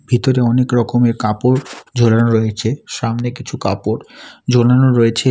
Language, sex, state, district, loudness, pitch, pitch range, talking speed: Bengali, male, West Bengal, Alipurduar, -15 LUFS, 120 Hz, 115-130 Hz, 125 wpm